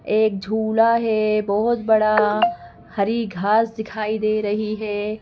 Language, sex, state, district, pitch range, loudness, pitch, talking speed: Hindi, female, Madhya Pradesh, Bhopal, 210-220 Hz, -20 LUFS, 215 Hz, 125 wpm